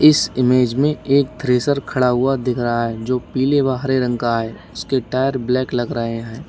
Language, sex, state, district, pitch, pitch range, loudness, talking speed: Hindi, male, Uttar Pradesh, Lalitpur, 125 Hz, 120-135 Hz, -18 LUFS, 210 wpm